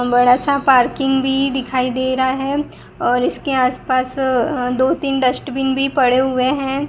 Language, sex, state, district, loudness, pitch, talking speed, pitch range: Hindi, female, Gujarat, Gandhinagar, -17 LUFS, 265 Hz, 165 wpm, 255-270 Hz